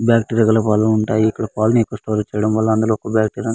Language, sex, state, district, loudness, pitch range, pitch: Telugu, male, Andhra Pradesh, Anantapur, -17 LUFS, 110-115 Hz, 110 Hz